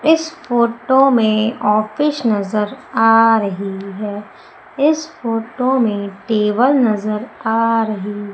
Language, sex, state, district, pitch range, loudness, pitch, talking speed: Hindi, female, Madhya Pradesh, Umaria, 210-255 Hz, -16 LUFS, 225 Hz, 110 wpm